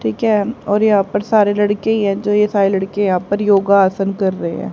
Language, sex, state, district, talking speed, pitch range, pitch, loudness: Hindi, female, Haryana, Jhajjar, 255 wpm, 195-210 Hz, 200 Hz, -15 LUFS